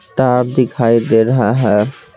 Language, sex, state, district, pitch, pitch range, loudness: Hindi, male, Bihar, Patna, 120 Hz, 115-130 Hz, -13 LUFS